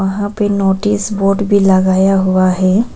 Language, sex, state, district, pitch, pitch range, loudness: Hindi, female, Arunachal Pradesh, Papum Pare, 195 Hz, 190-205 Hz, -13 LUFS